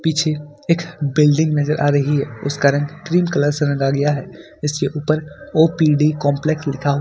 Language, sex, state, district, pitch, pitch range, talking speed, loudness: Hindi, male, Jharkhand, Ranchi, 150 Hz, 145-155 Hz, 180 wpm, -18 LUFS